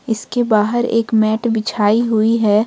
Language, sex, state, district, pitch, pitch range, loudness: Hindi, female, Jharkhand, Ranchi, 225 Hz, 215-230 Hz, -16 LUFS